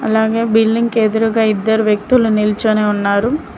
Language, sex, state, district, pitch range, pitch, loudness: Telugu, female, Telangana, Mahabubabad, 210-225 Hz, 220 Hz, -14 LUFS